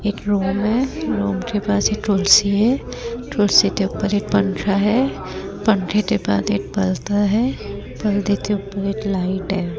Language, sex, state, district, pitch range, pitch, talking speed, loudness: Hindi, female, Rajasthan, Jaipur, 195-210 Hz, 205 Hz, 165 wpm, -19 LUFS